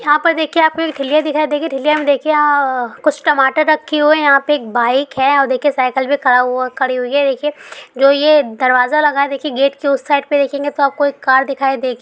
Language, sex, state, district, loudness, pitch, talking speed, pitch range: Hindi, female, Bihar, Sitamarhi, -14 LUFS, 280 Hz, 255 wpm, 265-300 Hz